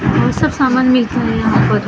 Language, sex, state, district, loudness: Hindi, female, Maharashtra, Gondia, -14 LUFS